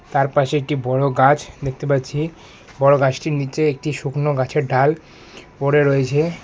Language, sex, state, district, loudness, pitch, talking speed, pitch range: Bengali, male, West Bengal, Alipurduar, -19 LUFS, 140 Hz, 150 wpm, 135-150 Hz